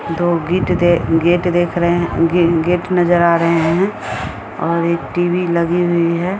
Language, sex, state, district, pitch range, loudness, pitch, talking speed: Hindi, female, Bihar, Samastipur, 170-175 Hz, -15 LUFS, 170 Hz, 160 wpm